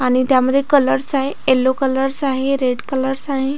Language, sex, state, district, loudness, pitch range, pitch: Marathi, female, Maharashtra, Pune, -17 LUFS, 260-275 Hz, 270 Hz